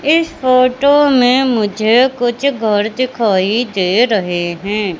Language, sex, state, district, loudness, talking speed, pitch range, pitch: Hindi, female, Madhya Pradesh, Katni, -13 LUFS, 120 wpm, 205-260 Hz, 240 Hz